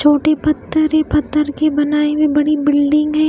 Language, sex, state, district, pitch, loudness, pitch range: Hindi, female, Himachal Pradesh, Shimla, 300 Hz, -15 LUFS, 295-310 Hz